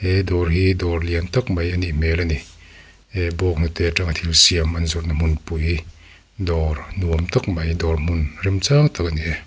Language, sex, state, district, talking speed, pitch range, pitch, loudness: Mizo, male, Mizoram, Aizawl, 190 wpm, 80-90 Hz, 85 Hz, -20 LUFS